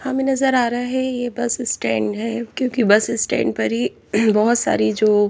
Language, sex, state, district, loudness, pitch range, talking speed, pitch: Hindi, female, Haryana, Jhajjar, -19 LUFS, 205-245 Hz, 180 wpm, 230 Hz